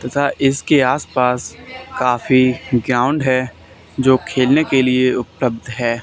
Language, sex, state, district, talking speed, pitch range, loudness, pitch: Hindi, male, Haryana, Charkhi Dadri, 130 wpm, 125-135 Hz, -16 LUFS, 130 Hz